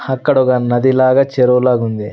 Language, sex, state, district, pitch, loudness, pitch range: Telugu, male, Andhra Pradesh, Sri Satya Sai, 125 Hz, -13 LUFS, 120-130 Hz